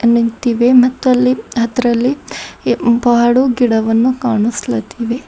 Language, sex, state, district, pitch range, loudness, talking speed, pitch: Kannada, female, Karnataka, Bidar, 235-250 Hz, -14 LUFS, 90 wpm, 240 Hz